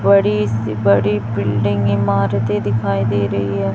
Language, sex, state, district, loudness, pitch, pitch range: Hindi, female, Chhattisgarh, Raipur, -17 LUFS, 105 Hz, 100-105 Hz